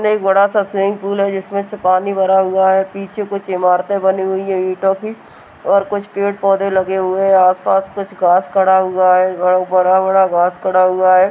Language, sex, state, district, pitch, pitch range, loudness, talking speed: Hindi, female, Uttar Pradesh, Budaun, 190 Hz, 185-200 Hz, -14 LUFS, 205 wpm